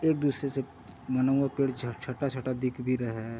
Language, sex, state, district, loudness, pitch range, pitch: Hindi, male, Chhattisgarh, Bilaspur, -30 LUFS, 125-140 Hz, 130 Hz